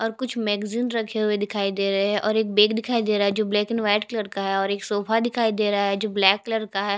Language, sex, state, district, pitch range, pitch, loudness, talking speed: Hindi, female, Chhattisgarh, Jashpur, 200-225 Hz, 210 Hz, -23 LUFS, 300 wpm